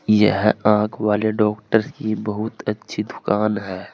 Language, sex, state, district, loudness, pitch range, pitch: Hindi, male, Uttar Pradesh, Saharanpur, -20 LUFS, 105-110 Hz, 105 Hz